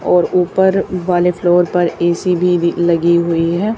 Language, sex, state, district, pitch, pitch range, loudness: Hindi, female, Haryana, Charkhi Dadri, 175 Hz, 170-180 Hz, -14 LUFS